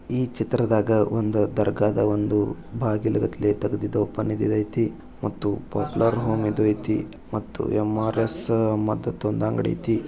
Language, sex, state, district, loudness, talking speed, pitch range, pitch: Kannada, male, Karnataka, Bijapur, -24 LUFS, 125 wpm, 105-110 Hz, 105 Hz